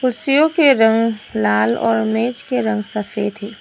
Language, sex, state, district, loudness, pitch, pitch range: Hindi, female, Assam, Hailakandi, -17 LUFS, 225 Hz, 210-250 Hz